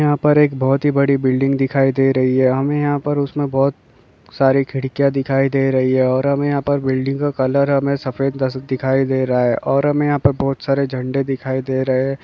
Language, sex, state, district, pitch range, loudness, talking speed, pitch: Hindi, male, Bihar, Kishanganj, 130-140 Hz, -17 LUFS, 215 wpm, 135 Hz